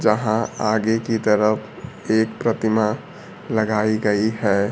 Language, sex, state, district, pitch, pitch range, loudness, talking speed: Hindi, male, Bihar, Kaimur, 110 Hz, 105-110 Hz, -20 LUFS, 115 wpm